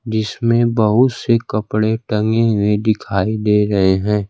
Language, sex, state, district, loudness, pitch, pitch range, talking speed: Hindi, male, Bihar, Kaimur, -16 LUFS, 110 Hz, 105-115 Hz, 140 wpm